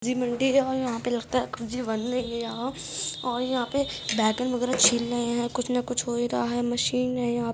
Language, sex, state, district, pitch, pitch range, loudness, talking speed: Hindi, female, Bihar, Saharsa, 245 Hz, 240-250 Hz, -26 LUFS, 215 wpm